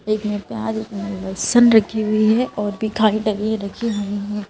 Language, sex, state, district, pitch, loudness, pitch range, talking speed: Hindi, female, Madhya Pradesh, Bhopal, 215 Hz, -19 LUFS, 205-220 Hz, 185 wpm